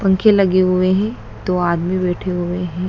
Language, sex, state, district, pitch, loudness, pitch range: Hindi, female, Madhya Pradesh, Dhar, 185 Hz, -17 LUFS, 180-190 Hz